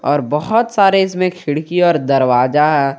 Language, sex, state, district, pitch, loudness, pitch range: Hindi, male, Jharkhand, Garhwa, 155 Hz, -14 LUFS, 140-185 Hz